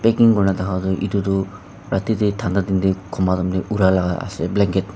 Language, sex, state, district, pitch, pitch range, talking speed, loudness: Nagamese, male, Nagaland, Dimapur, 95 Hz, 95-100 Hz, 195 wpm, -20 LUFS